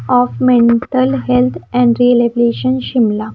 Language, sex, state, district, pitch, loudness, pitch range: Hindi, female, Himachal Pradesh, Shimla, 240 Hz, -13 LUFS, 215-250 Hz